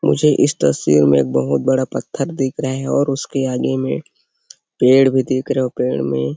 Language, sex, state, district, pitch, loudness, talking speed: Hindi, male, Chhattisgarh, Sarguja, 130 Hz, -17 LUFS, 205 wpm